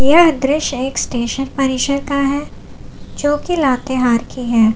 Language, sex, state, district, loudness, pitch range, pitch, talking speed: Hindi, female, Jharkhand, Garhwa, -16 LUFS, 255-290 Hz, 270 Hz, 140 wpm